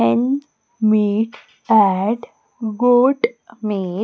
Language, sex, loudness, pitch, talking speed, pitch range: English, female, -18 LUFS, 220 Hz, 90 wpm, 210-240 Hz